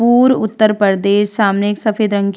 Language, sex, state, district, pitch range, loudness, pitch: Hindi, female, Uttar Pradesh, Hamirpur, 200-220 Hz, -14 LUFS, 210 Hz